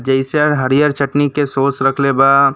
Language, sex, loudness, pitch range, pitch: Bhojpuri, male, -14 LUFS, 135-145 Hz, 140 Hz